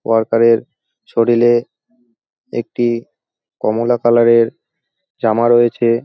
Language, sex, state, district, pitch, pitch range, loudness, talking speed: Bengali, male, West Bengal, Jalpaiguri, 115 Hz, 115-120 Hz, -15 LUFS, 90 wpm